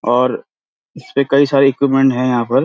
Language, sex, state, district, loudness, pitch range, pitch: Hindi, male, Uttarakhand, Uttarkashi, -14 LUFS, 125-140 Hz, 135 Hz